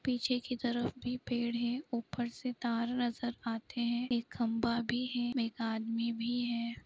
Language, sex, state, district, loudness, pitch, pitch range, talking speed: Hindi, female, Jharkhand, Sahebganj, -35 LUFS, 240 Hz, 235-245 Hz, 175 wpm